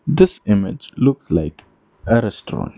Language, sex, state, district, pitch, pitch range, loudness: English, male, Karnataka, Bangalore, 115 Hz, 105-155 Hz, -18 LUFS